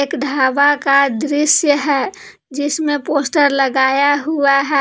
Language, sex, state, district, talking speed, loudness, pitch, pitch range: Hindi, female, Jharkhand, Palamu, 110 wpm, -15 LUFS, 285 Hz, 275-295 Hz